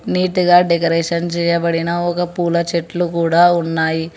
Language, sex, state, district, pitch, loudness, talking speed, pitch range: Telugu, male, Telangana, Hyderabad, 170 Hz, -16 LUFS, 115 wpm, 170-175 Hz